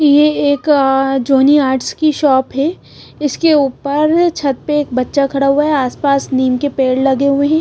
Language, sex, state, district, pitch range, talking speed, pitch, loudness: Hindi, female, Punjab, Pathankot, 270-295 Hz, 180 wpm, 280 Hz, -13 LUFS